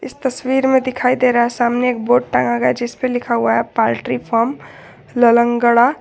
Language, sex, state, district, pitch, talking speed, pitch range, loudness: Hindi, female, Jharkhand, Garhwa, 245 Hz, 200 wpm, 235-255 Hz, -16 LUFS